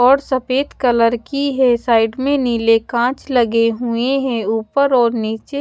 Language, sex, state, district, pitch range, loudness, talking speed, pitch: Hindi, female, Haryana, Charkhi Dadri, 230-270 Hz, -16 LUFS, 160 wpm, 245 Hz